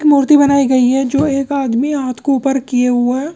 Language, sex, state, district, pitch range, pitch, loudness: Hindi, male, Andhra Pradesh, Krishna, 255-285 Hz, 275 Hz, -14 LUFS